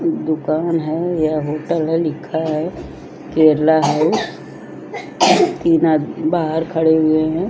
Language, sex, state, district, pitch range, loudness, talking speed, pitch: Hindi, female, Maharashtra, Chandrapur, 155-165 Hz, -17 LUFS, 120 wpm, 160 Hz